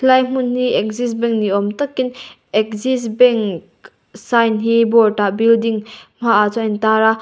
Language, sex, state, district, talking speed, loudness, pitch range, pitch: Mizo, female, Mizoram, Aizawl, 165 wpm, -16 LUFS, 215-245 Hz, 230 Hz